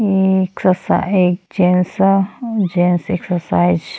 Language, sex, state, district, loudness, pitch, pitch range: Bhojpuri, female, Uttar Pradesh, Deoria, -16 LUFS, 185 Hz, 180-195 Hz